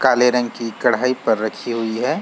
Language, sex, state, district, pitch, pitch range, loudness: Hindi, male, Bihar, Saran, 120 Hz, 115-125 Hz, -19 LUFS